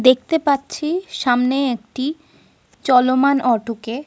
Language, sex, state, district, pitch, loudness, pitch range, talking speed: Bengali, female, Jharkhand, Sahebganj, 260 Hz, -18 LUFS, 245-285 Hz, 105 wpm